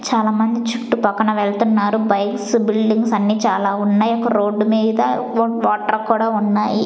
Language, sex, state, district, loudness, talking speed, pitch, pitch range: Telugu, female, Andhra Pradesh, Sri Satya Sai, -17 LUFS, 140 wpm, 220 Hz, 210-230 Hz